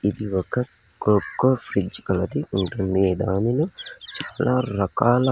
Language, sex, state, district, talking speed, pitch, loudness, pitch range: Telugu, male, Andhra Pradesh, Sri Satya Sai, 90 wpm, 105 Hz, -23 LUFS, 95-125 Hz